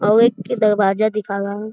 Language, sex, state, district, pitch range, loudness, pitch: Hindi, female, Bihar, Jamui, 200-215 Hz, -18 LUFS, 210 Hz